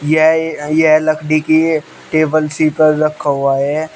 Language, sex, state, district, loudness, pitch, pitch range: Hindi, male, Uttar Pradesh, Shamli, -14 LUFS, 155 Hz, 150-155 Hz